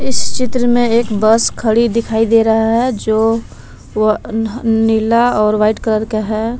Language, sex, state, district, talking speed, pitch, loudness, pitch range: Hindi, female, Jharkhand, Palamu, 165 wpm, 225 Hz, -14 LUFS, 220-235 Hz